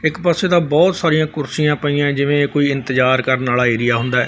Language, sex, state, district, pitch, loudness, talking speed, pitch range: Punjabi, male, Punjab, Fazilka, 145 Hz, -16 LUFS, 195 wpm, 130-155 Hz